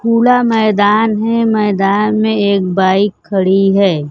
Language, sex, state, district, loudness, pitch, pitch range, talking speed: Hindi, female, Bihar, Kaimur, -12 LUFS, 205 Hz, 195-220 Hz, 130 wpm